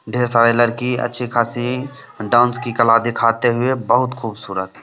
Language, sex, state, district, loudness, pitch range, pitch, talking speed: Hindi, male, Bihar, Samastipur, -17 LUFS, 115-125 Hz, 120 Hz, 150 wpm